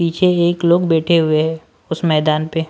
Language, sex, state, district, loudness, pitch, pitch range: Hindi, male, Maharashtra, Washim, -16 LUFS, 165 Hz, 160-170 Hz